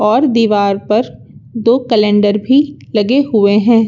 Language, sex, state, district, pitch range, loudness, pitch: Hindi, female, Uttar Pradesh, Lucknow, 210-245 Hz, -12 LUFS, 225 Hz